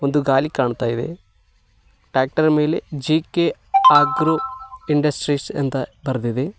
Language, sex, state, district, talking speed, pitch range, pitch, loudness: Kannada, male, Karnataka, Koppal, 100 wpm, 130-160 Hz, 145 Hz, -19 LUFS